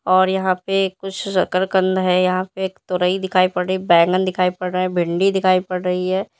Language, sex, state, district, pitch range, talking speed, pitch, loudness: Hindi, female, Uttar Pradesh, Lalitpur, 180-190 Hz, 225 wpm, 185 Hz, -19 LUFS